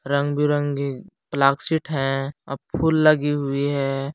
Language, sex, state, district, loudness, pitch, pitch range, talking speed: Hindi, male, Jharkhand, Palamu, -22 LUFS, 140 Hz, 140-150 Hz, 130 wpm